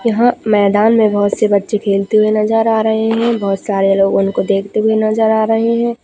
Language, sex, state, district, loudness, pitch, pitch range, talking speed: Hindi, female, Chhattisgarh, Jashpur, -13 LUFS, 215 Hz, 200-225 Hz, 220 wpm